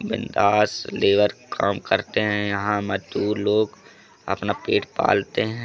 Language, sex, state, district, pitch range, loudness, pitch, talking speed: Hindi, male, Madhya Pradesh, Katni, 100-105 Hz, -22 LUFS, 105 Hz, 125 wpm